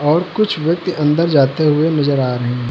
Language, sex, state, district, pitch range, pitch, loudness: Hindi, male, Uttar Pradesh, Lucknow, 140-165 Hz, 150 Hz, -15 LUFS